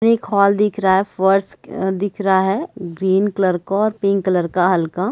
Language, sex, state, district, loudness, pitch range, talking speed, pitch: Hindi, female, Chhattisgarh, Bilaspur, -17 LUFS, 185-200 Hz, 225 wpm, 195 Hz